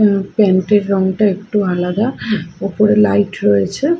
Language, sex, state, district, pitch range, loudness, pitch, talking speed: Bengali, female, Odisha, Khordha, 180-210 Hz, -15 LUFS, 195 Hz, 135 wpm